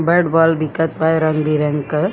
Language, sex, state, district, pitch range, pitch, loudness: Bhojpuri, female, Uttar Pradesh, Gorakhpur, 155-165 Hz, 160 Hz, -16 LUFS